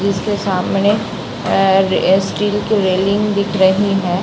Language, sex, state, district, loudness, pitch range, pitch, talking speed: Hindi, female, Bihar, Samastipur, -15 LUFS, 190-205 Hz, 200 Hz, 130 wpm